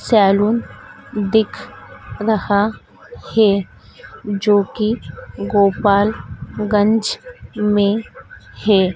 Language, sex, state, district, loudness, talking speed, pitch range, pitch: Hindi, female, Madhya Pradesh, Dhar, -17 LUFS, 60 wpm, 200-220 Hz, 205 Hz